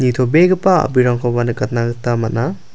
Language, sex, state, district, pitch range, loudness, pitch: Garo, male, Meghalaya, South Garo Hills, 120-130 Hz, -15 LUFS, 120 Hz